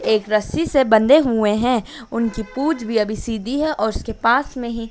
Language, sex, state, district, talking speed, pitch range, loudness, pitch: Hindi, female, Madhya Pradesh, Dhar, 210 wpm, 220-270 Hz, -19 LUFS, 230 Hz